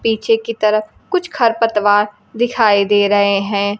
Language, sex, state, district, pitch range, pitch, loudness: Hindi, female, Bihar, Kaimur, 205-230 Hz, 215 Hz, -15 LUFS